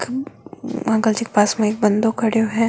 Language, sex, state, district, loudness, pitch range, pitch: Marwari, female, Rajasthan, Nagaur, -19 LUFS, 220-250 Hz, 225 Hz